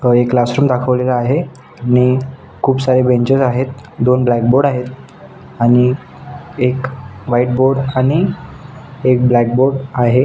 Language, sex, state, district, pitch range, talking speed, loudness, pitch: Marathi, male, Maharashtra, Nagpur, 125-135 Hz, 130 wpm, -14 LUFS, 130 Hz